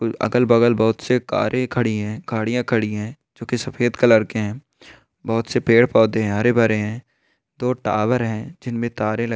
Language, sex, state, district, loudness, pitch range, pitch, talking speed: Hindi, male, Rajasthan, Churu, -20 LUFS, 110-125 Hz, 115 Hz, 190 wpm